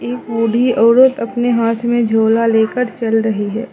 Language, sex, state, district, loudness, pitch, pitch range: Hindi, female, Mizoram, Aizawl, -14 LUFS, 230 Hz, 225-240 Hz